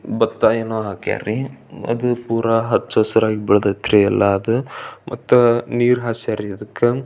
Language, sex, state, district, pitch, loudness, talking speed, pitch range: Kannada, male, Karnataka, Belgaum, 115 Hz, -18 LUFS, 120 wpm, 105-120 Hz